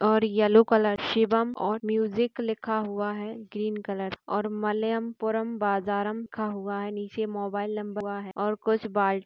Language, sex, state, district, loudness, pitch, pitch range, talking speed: Hindi, female, Bihar, Jamui, -28 LUFS, 215 Hz, 205-220 Hz, 180 wpm